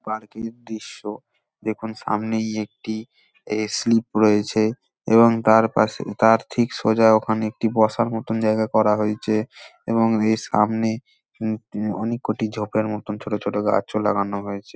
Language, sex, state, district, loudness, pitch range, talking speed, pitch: Bengali, male, West Bengal, Dakshin Dinajpur, -21 LUFS, 105-110 Hz, 145 wpm, 110 Hz